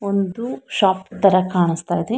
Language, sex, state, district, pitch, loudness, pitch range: Kannada, female, Karnataka, Bangalore, 190 Hz, -19 LUFS, 185-200 Hz